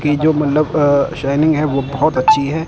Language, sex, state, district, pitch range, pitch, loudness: Hindi, male, Punjab, Kapurthala, 140-155 Hz, 150 Hz, -15 LUFS